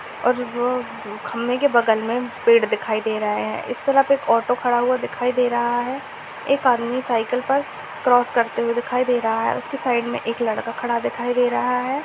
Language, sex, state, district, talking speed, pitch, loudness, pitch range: Hindi, female, Uttar Pradesh, Jalaun, 215 wpm, 245 Hz, -21 LUFS, 235-255 Hz